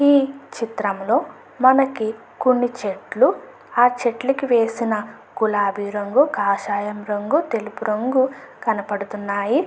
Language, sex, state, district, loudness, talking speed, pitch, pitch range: Telugu, female, Andhra Pradesh, Anantapur, -21 LUFS, 105 wpm, 230 Hz, 205-265 Hz